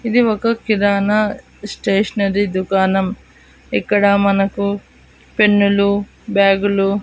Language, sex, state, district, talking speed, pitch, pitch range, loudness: Telugu, female, Andhra Pradesh, Annamaya, 95 wpm, 200 Hz, 195-210 Hz, -16 LUFS